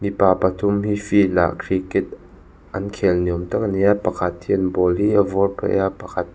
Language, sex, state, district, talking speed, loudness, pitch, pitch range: Mizo, male, Mizoram, Aizawl, 225 wpm, -20 LUFS, 95 Hz, 90-100 Hz